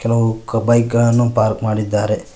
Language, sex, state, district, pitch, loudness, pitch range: Kannada, male, Karnataka, Koppal, 115 Hz, -16 LUFS, 110-120 Hz